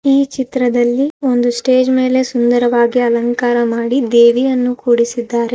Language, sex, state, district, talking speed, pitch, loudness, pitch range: Kannada, female, Karnataka, Raichur, 110 wpm, 245 Hz, -14 LUFS, 240-255 Hz